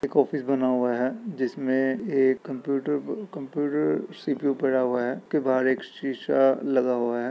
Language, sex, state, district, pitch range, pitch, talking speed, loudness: Hindi, male, Uttar Pradesh, Etah, 130-140 Hz, 135 Hz, 165 wpm, -25 LUFS